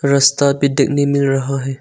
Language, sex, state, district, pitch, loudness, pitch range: Hindi, male, Arunachal Pradesh, Longding, 140 Hz, -15 LUFS, 135-140 Hz